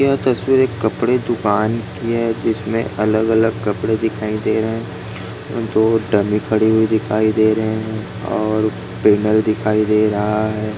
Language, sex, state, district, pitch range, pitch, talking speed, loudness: Hindi, male, Maharashtra, Aurangabad, 110-115 Hz, 110 Hz, 145 wpm, -17 LUFS